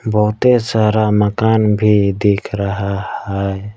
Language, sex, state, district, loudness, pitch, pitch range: Hindi, male, Jharkhand, Palamu, -15 LUFS, 105 Hz, 100-110 Hz